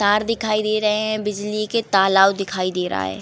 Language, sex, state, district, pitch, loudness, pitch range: Hindi, female, Uttar Pradesh, Varanasi, 210 Hz, -19 LUFS, 195-215 Hz